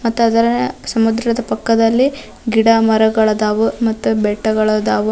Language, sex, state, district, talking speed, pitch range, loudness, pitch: Kannada, female, Karnataka, Dharwad, 70 wpm, 220-230 Hz, -15 LUFS, 225 Hz